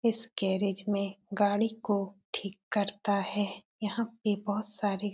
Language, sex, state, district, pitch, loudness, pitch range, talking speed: Hindi, female, Uttar Pradesh, Etah, 205 Hz, -32 LUFS, 200-215 Hz, 150 wpm